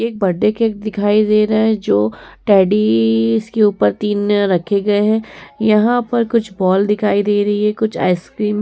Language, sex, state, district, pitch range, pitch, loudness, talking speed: Hindi, female, Uttar Pradesh, Muzaffarnagar, 195-215 Hz, 210 Hz, -15 LUFS, 190 wpm